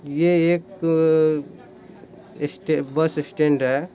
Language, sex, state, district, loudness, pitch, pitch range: Hindi, male, Bihar, East Champaran, -21 LUFS, 160 Hz, 150-175 Hz